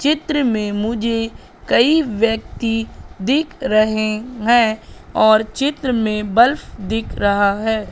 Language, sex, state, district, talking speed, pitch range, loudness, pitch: Hindi, female, Madhya Pradesh, Katni, 115 wpm, 215-245 Hz, -17 LUFS, 225 Hz